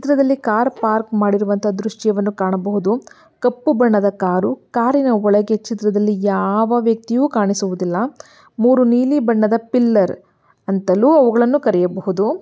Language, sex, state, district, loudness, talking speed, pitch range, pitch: Kannada, female, Karnataka, Belgaum, -17 LUFS, 110 wpm, 205-245 Hz, 220 Hz